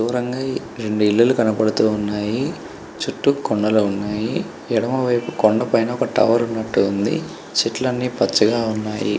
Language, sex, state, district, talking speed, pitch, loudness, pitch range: Telugu, male, Andhra Pradesh, Chittoor, 110 wpm, 110 Hz, -20 LUFS, 105-120 Hz